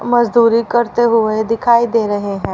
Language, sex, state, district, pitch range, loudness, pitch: Hindi, female, Haryana, Rohtak, 225-240 Hz, -14 LUFS, 230 Hz